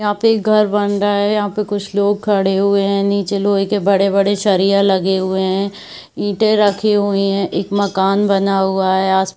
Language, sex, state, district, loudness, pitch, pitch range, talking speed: Hindi, female, Chhattisgarh, Bilaspur, -15 LUFS, 200 Hz, 195-205 Hz, 205 wpm